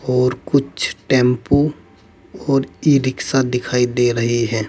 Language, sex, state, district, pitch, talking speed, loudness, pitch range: Hindi, male, Uttar Pradesh, Saharanpur, 125 Hz, 130 wpm, -18 LUFS, 120-135 Hz